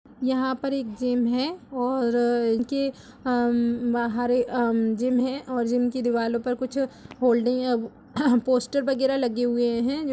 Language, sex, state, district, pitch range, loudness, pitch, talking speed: Hindi, female, Uttar Pradesh, Jalaun, 240-260 Hz, -25 LUFS, 245 Hz, 150 wpm